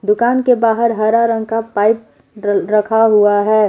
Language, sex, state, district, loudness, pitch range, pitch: Hindi, female, Jharkhand, Palamu, -14 LUFS, 210-230 Hz, 220 Hz